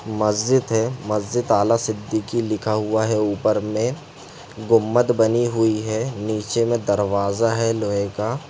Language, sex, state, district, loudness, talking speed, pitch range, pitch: Hindi, male, Chhattisgarh, Sarguja, -21 LUFS, 150 wpm, 105-115 Hz, 110 Hz